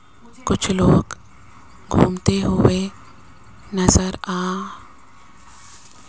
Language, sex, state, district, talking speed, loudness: Hindi, female, Rajasthan, Jaipur, 70 wpm, -19 LUFS